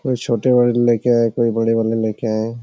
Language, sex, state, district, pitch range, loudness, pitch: Hindi, male, Jharkhand, Jamtara, 115-120 Hz, -17 LUFS, 115 Hz